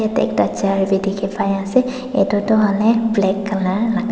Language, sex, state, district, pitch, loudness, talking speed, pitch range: Nagamese, female, Nagaland, Dimapur, 205 Hz, -18 LUFS, 190 wpm, 195-225 Hz